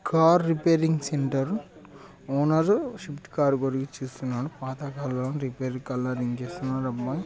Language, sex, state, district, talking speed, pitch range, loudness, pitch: Telugu, male, Telangana, Karimnagar, 115 wpm, 130-160 Hz, -27 LUFS, 135 Hz